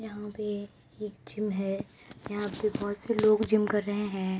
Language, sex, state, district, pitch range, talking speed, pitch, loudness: Hindi, female, Uttar Pradesh, Etah, 205-215 Hz, 205 wpm, 210 Hz, -30 LUFS